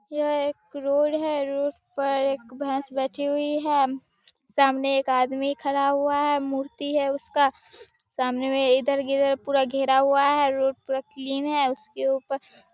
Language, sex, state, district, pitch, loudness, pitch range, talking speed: Hindi, female, Bihar, Darbhanga, 275 Hz, -24 LUFS, 270-285 Hz, 160 wpm